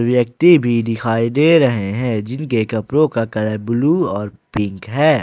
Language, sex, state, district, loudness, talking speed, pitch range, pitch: Hindi, male, Jharkhand, Ranchi, -16 LUFS, 160 wpm, 110-145 Hz, 115 Hz